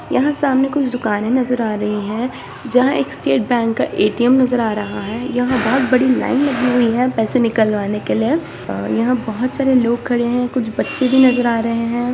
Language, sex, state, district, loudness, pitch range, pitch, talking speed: Hindi, female, Bihar, Lakhisarai, -17 LUFS, 225-255 Hz, 245 Hz, 210 wpm